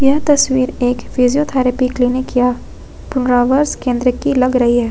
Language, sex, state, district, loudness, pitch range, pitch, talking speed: Hindi, female, Jharkhand, Ranchi, -15 LUFS, 250-270 Hz, 255 Hz, 135 wpm